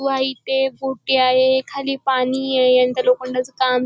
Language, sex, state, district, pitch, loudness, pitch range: Marathi, female, Maharashtra, Chandrapur, 260 Hz, -18 LUFS, 255-265 Hz